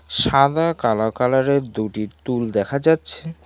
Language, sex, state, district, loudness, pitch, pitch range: Bengali, male, West Bengal, Cooch Behar, -19 LUFS, 125 Hz, 110-140 Hz